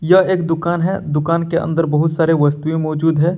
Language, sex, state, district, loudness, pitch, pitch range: Hindi, male, Jharkhand, Deoghar, -16 LUFS, 165 Hz, 160-170 Hz